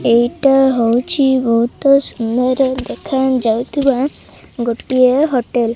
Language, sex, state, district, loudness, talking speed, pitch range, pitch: Odia, female, Odisha, Malkangiri, -15 LUFS, 95 wpm, 235-270 Hz, 255 Hz